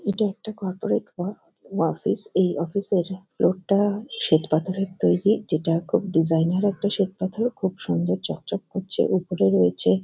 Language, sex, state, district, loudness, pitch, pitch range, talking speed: Bengali, female, West Bengal, Kolkata, -24 LUFS, 185 Hz, 165-200 Hz, 150 wpm